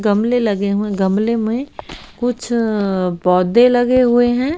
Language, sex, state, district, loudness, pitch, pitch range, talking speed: Hindi, female, Haryana, Rohtak, -16 LUFS, 225 Hz, 200-245 Hz, 145 wpm